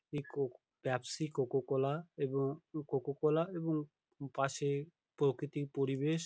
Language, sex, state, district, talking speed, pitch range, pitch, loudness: Bengali, male, West Bengal, Dakshin Dinajpur, 85 wpm, 135-155 Hz, 140 Hz, -37 LUFS